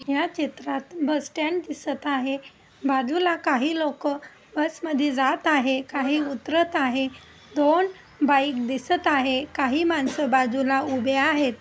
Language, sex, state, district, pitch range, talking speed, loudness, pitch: Marathi, female, Maharashtra, Aurangabad, 270-310 Hz, 130 wpm, -24 LUFS, 285 Hz